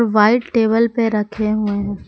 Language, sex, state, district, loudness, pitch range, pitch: Hindi, female, Jharkhand, Palamu, -17 LUFS, 210-230 Hz, 220 Hz